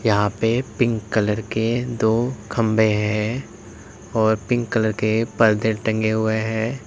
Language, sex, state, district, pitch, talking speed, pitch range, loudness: Hindi, male, Uttar Pradesh, Lalitpur, 110 Hz, 140 wpm, 110-115 Hz, -21 LUFS